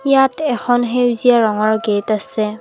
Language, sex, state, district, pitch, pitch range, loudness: Assamese, female, Assam, Kamrup Metropolitan, 235 Hz, 215-250 Hz, -16 LUFS